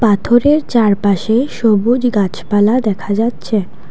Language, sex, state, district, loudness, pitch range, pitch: Bengali, female, Assam, Kamrup Metropolitan, -14 LUFS, 200-240 Hz, 215 Hz